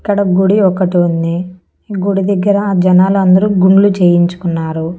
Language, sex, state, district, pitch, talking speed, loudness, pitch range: Telugu, female, Andhra Pradesh, Annamaya, 185 Hz, 120 wpm, -12 LUFS, 175-200 Hz